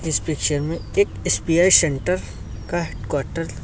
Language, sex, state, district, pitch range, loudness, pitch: Hindi, male, Uttar Pradesh, Lucknow, 155-180 Hz, -20 LUFS, 165 Hz